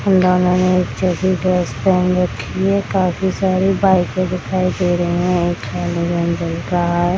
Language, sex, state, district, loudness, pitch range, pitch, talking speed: Hindi, female, Bihar, Madhepura, -17 LUFS, 175-185 Hz, 180 Hz, 150 wpm